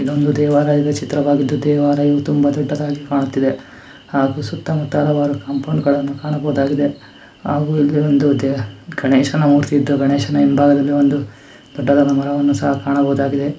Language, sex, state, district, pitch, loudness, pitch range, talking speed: Kannada, male, Karnataka, Mysore, 145 Hz, -16 LUFS, 140-145 Hz, 120 wpm